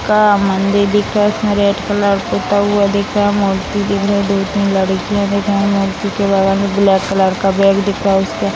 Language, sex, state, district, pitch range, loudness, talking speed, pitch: Hindi, female, Bihar, Sitamarhi, 195-205 Hz, -14 LUFS, 240 wpm, 200 Hz